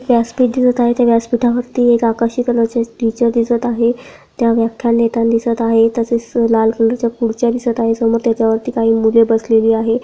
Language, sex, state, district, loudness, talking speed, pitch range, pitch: Marathi, female, Maharashtra, Pune, -14 LUFS, 180 wpm, 230-240 Hz, 230 Hz